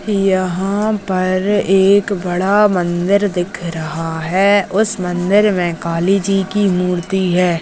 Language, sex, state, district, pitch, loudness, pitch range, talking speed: Hindi, female, Maharashtra, Dhule, 190 Hz, -15 LUFS, 180-200 Hz, 125 wpm